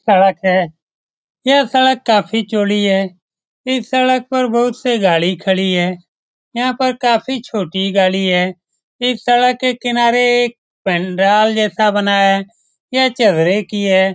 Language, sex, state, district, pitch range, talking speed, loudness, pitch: Hindi, male, Bihar, Saran, 190-245 Hz, 145 wpm, -15 LUFS, 210 Hz